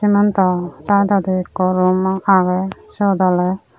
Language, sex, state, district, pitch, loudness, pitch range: Chakma, female, Tripura, Unakoti, 185 Hz, -16 LUFS, 185-200 Hz